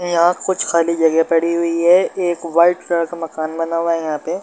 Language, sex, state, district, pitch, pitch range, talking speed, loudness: Hindi, male, Bihar, Darbhanga, 170 Hz, 165-175 Hz, 230 wpm, -17 LUFS